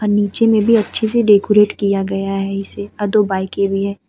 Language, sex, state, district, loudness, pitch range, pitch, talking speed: Hindi, female, Uttar Pradesh, Muzaffarnagar, -16 LUFS, 195-210 Hz, 205 Hz, 235 wpm